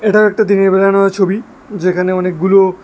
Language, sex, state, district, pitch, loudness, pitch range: Bengali, male, Tripura, West Tripura, 195 Hz, -12 LUFS, 190-210 Hz